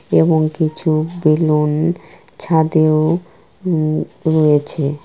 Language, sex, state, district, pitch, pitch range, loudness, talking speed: Bengali, female, West Bengal, Kolkata, 155 Hz, 155-165 Hz, -16 LUFS, 70 wpm